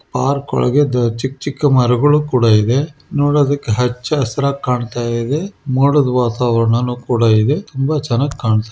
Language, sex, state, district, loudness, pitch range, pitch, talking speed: Kannada, male, Karnataka, Mysore, -16 LUFS, 120-145 Hz, 130 Hz, 140 wpm